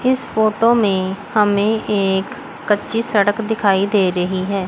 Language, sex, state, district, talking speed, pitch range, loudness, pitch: Hindi, female, Chandigarh, Chandigarh, 140 wpm, 195-225 Hz, -17 LUFS, 205 Hz